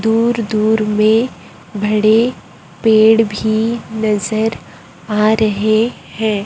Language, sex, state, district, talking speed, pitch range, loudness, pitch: Hindi, male, Chhattisgarh, Raipur, 95 wpm, 210-225 Hz, -15 LUFS, 220 Hz